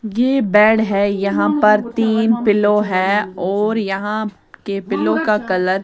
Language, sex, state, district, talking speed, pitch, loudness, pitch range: Hindi, female, Bihar, West Champaran, 155 wpm, 210 Hz, -16 LUFS, 195-220 Hz